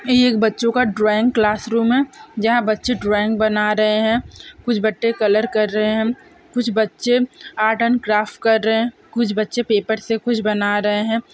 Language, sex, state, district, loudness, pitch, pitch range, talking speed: Hindi, female, Uttarakhand, Tehri Garhwal, -18 LUFS, 225 Hz, 215-240 Hz, 190 wpm